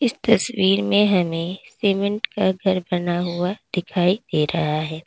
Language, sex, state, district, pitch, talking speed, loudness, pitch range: Hindi, female, Uttar Pradesh, Lalitpur, 185 Hz, 140 wpm, -21 LUFS, 175-205 Hz